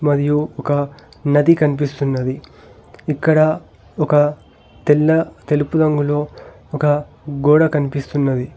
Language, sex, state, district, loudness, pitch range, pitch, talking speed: Telugu, male, Telangana, Hyderabad, -17 LUFS, 140-150 Hz, 145 Hz, 85 wpm